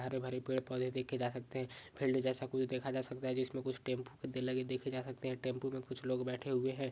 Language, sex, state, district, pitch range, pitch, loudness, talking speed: Hindi, male, Maharashtra, Pune, 125-130 Hz, 130 Hz, -39 LUFS, 235 wpm